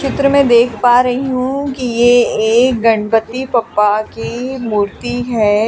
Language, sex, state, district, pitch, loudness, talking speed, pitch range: Hindi, female, Delhi, New Delhi, 245 Hz, -14 LUFS, 150 wpm, 225-255 Hz